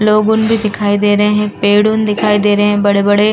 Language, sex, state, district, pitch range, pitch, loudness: Hindi, female, Uttar Pradesh, Muzaffarnagar, 205-215 Hz, 210 Hz, -12 LUFS